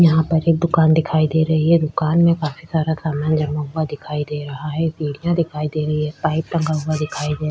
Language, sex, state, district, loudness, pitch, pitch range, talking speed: Hindi, female, Chhattisgarh, Sukma, -19 LUFS, 155 Hz, 150-160 Hz, 245 wpm